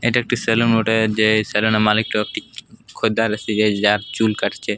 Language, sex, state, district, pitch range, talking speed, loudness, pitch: Bengali, male, Jharkhand, Jamtara, 105-115 Hz, 150 wpm, -18 LUFS, 110 Hz